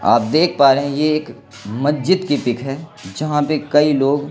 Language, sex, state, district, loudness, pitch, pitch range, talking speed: Hindi, male, Madhya Pradesh, Katni, -17 LUFS, 145 Hz, 135-155 Hz, 210 wpm